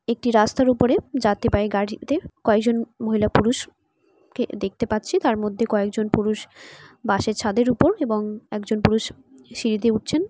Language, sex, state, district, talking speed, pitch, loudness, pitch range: Bengali, female, West Bengal, Purulia, 145 wpm, 225 Hz, -22 LUFS, 215-245 Hz